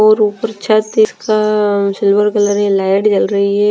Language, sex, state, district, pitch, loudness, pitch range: Hindi, female, Punjab, Fazilka, 210 Hz, -13 LUFS, 200-215 Hz